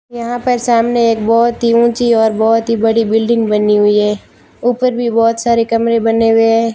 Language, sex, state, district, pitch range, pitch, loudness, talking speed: Hindi, female, Rajasthan, Barmer, 225-235 Hz, 230 Hz, -13 LUFS, 205 wpm